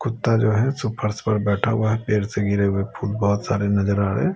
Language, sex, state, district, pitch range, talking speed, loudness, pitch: Hindi, male, Delhi, New Delhi, 100-115 Hz, 260 wpm, -21 LUFS, 105 Hz